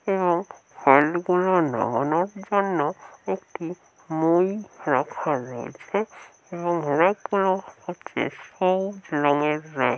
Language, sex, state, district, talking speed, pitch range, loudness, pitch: Bengali, male, West Bengal, North 24 Parganas, 85 wpm, 150-190 Hz, -24 LUFS, 175 Hz